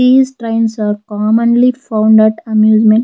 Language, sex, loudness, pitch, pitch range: English, female, -11 LUFS, 220 Hz, 215-235 Hz